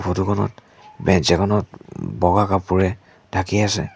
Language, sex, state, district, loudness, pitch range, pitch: Assamese, male, Assam, Sonitpur, -20 LUFS, 90-105 Hz, 95 Hz